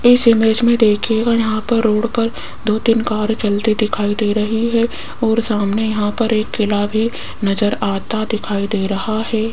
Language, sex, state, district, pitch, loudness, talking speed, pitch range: Hindi, female, Rajasthan, Jaipur, 220 Hz, -17 LUFS, 180 wpm, 210-230 Hz